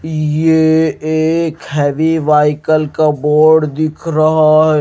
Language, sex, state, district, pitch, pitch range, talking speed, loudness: Hindi, male, Maharashtra, Gondia, 155 Hz, 150-160 Hz, 110 wpm, -12 LUFS